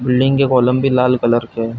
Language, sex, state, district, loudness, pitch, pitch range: Hindi, male, Chhattisgarh, Bilaspur, -15 LUFS, 125 Hz, 120-130 Hz